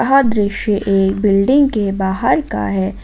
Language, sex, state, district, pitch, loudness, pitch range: Hindi, female, Jharkhand, Ranchi, 200 Hz, -15 LUFS, 190-225 Hz